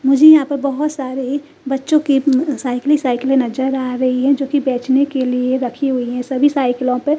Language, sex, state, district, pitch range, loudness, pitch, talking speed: Hindi, female, Chandigarh, Chandigarh, 255-285 Hz, -16 LUFS, 270 Hz, 225 wpm